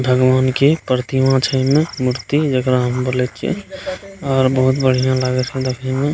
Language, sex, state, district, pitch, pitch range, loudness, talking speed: Maithili, male, Bihar, Begusarai, 130 Hz, 130-140 Hz, -17 LUFS, 165 wpm